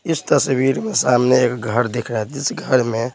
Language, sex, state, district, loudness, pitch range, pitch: Hindi, male, Bihar, Patna, -18 LUFS, 120-135 Hz, 125 Hz